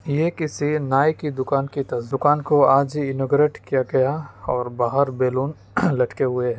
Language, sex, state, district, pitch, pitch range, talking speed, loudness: Hindi, male, Uttar Pradesh, Deoria, 140 Hz, 130-150 Hz, 165 wpm, -21 LUFS